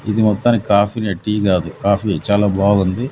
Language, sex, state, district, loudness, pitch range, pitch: Telugu, male, Andhra Pradesh, Sri Satya Sai, -16 LUFS, 100-110 Hz, 105 Hz